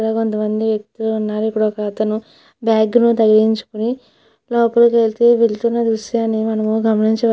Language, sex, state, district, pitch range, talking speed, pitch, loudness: Telugu, female, Andhra Pradesh, Chittoor, 215-235 Hz, 115 wpm, 220 Hz, -16 LUFS